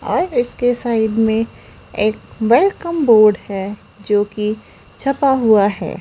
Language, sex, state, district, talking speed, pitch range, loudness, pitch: Hindi, female, Rajasthan, Jaipur, 130 wpm, 210-245 Hz, -16 LUFS, 220 Hz